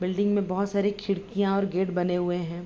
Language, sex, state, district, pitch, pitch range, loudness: Hindi, female, Bihar, Begusarai, 195 Hz, 180-200 Hz, -27 LUFS